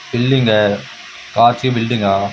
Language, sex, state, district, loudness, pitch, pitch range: Rajasthani, male, Rajasthan, Churu, -15 LUFS, 115 Hz, 100-120 Hz